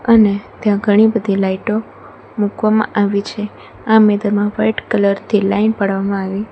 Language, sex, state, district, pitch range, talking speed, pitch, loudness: Gujarati, female, Gujarat, Valsad, 200-215 Hz, 145 wpm, 210 Hz, -15 LUFS